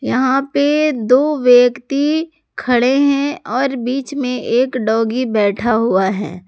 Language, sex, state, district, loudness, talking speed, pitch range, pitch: Hindi, female, Jharkhand, Garhwa, -15 LUFS, 130 wpm, 240-280 Hz, 255 Hz